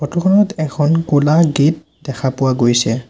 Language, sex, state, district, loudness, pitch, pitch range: Assamese, male, Assam, Sonitpur, -15 LUFS, 145 Hz, 135-160 Hz